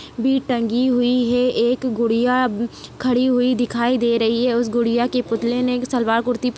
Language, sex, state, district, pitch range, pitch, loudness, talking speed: Hindi, female, Chhattisgarh, Jashpur, 235-250 Hz, 245 Hz, -19 LUFS, 175 wpm